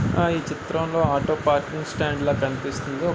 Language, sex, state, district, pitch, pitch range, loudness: Telugu, male, Andhra Pradesh, Guntur, 150 Hz, 140-160 Hz, -24 LUFS